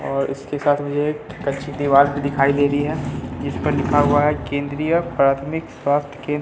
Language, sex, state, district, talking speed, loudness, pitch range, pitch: Hindi, male, Bihar, Katihar, 195 wpm, -20 LUFS, 140-145 Hz, 145 Hz